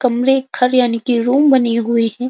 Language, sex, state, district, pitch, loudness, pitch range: Hindi, female, Uttar Pradesh, Jyotiba Phule Nagar, 250 Hz, -15 LUFS, 235-260 Hz